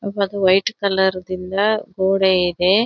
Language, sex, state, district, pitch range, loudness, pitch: Kannada, female, Karnataka, Belgaum, 185-200 Hz, -18 LUFS, 190 Hz